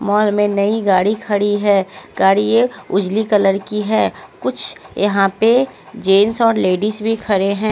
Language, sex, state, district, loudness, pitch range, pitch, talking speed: Hindi, female, Haryana, Jhajjar, -16 LUFS, 195-220 Hz, 205 Hz, 165 wpm